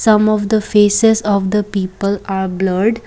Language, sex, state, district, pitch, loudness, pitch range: English, female, Assam, Kamrup Metropolitan, 205 Hz, -15 LUFS, 195-215 Hz